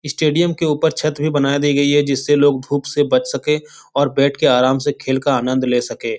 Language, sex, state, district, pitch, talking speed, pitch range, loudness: Hindi, male, Bihar, Supaul, 145 Hz, 250 wpm, 135-150 Hz, -17 LUFS